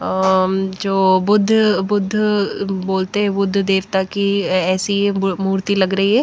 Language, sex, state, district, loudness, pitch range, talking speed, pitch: Hindi, female, Bihar, West Champaran, -17 LUFS, 190-200 Hz, 125 wpm, 195 Hz